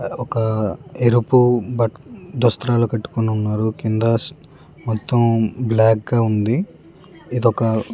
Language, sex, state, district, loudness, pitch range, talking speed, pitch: Telugu, male, Andhra Pradesh, Srikakulam, -19 LUFS, 110-125 Hz, 90 wpm, 115 Hz